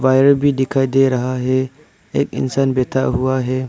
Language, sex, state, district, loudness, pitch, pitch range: Hindi, male, Arunachal Pradesh, Lower Dibang Valley, -17 LUFS, 130 Hz, 130-135 Hz